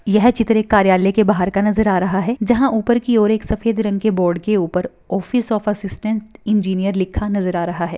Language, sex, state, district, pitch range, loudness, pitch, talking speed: Hindi, female, Rajasthan, Churu, 190-220 Hz, -17 LUFS, 210 Hz, 235 wpm